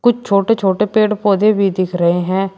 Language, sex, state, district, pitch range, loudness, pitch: Hindi, male, Uttar Pradesh, Shamli, 190-215 Hz, -15 LUFS, 200 Hz